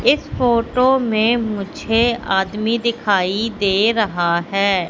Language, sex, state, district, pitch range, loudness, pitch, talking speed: Hindi, female, Madhya Pradesh, Katni, 195-235 Hz, -17 LUFS, 215 Hz, 110 wpm